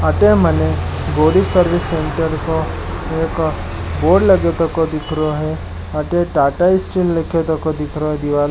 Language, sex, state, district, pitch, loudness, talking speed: Marwari, male, Rajasthan, Nagaur, 150 Hz, -16 LUFS, 160 wpm